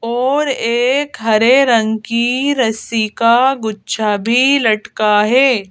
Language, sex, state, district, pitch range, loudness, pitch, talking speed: Hindi, female, Madhya Pradesh, Bhopal, 220-260 Hz, -14 LUFS, 235 Hz, 115 wpm